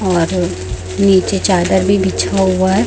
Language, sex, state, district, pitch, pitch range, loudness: Hindi, female, Chhattisgarh, Raipur, 185 Hz, 175-195 Hz, -14 LUFS